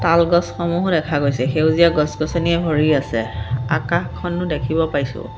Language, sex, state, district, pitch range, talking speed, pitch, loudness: Assamese, female, Assam, Sonitpur, 140-170 Hz, 120 wpm, 155 Hz, -19 LUFS